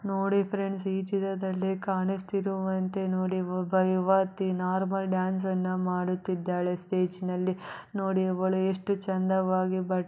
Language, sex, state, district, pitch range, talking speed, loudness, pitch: Kannada, female, Karnataka, Bellary, 185-195 Hz, 95 wpm, -29 LUFS, 190 Hz